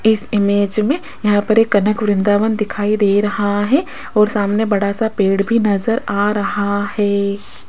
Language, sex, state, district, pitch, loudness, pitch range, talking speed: Hindi, female, Rajasthan, Jaipur, 205 Hz, -16 LUFS, 200-215 Hz, 170 wpm